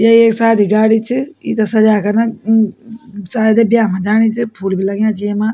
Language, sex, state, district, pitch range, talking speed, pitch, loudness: Garhwali, female, Uttarakhand, Tehri Garhwal, 210-230 Hz, 225 wpm, 220 Hz, -13 LUFS